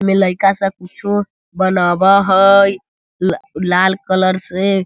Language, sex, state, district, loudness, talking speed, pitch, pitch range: Hindi, male, Bihar, Sitamarhi, -14 LUFS, 125 wpm, 190 Hz, 185-195 Hz